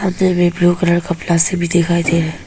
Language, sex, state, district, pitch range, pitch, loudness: Hindi, female, Arunachal Pradesh, Papum Pare, 170-180 Hz, 175 Hz, -15 LUFS